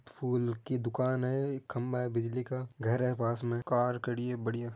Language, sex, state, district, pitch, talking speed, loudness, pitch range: Marwari, male, Rajasthan, Nagaur, 125 Hz, 200 wpm, -33 LUFS, 120-130 Hz